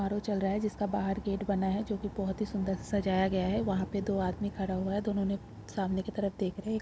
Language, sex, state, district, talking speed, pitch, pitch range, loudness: Hindi, female, Andhra Pradesh, Krishna, 275 wpm, 200 Hz, 190-205 Hz, -32 LUFS